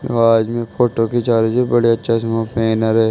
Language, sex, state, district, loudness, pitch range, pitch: Marwari, male, Rajasthan, Nagaur, -16 LUFS, 115-120 Hz, 115 Hz